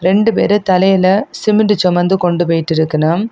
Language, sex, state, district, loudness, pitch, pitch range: Tamil, female, Tamil Nadu, Kanyakumari, -13 LUFS, 185 Hz, 175-205 Hz